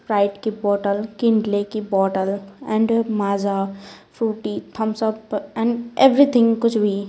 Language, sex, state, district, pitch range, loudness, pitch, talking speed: Hindi, female, Bihar, Patna, 200-230 Hz, -20 LUFS, 215 Hz, 125 wpm